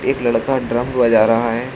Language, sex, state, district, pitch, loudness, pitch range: Hindi, male, Uttar Pradesh, Shamli, 120 Hz, -16 LUFS, 115-130 Hz